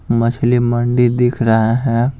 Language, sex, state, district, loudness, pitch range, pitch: Hindi, male, Bihar, Patna, -15 LUFS, 115-125 Hz, 120 Hz